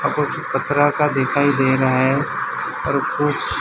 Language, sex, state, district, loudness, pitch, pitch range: Hindi, male, Gujarat, Valsad, -19 LUFS, 145 Hz, 135-145 Hz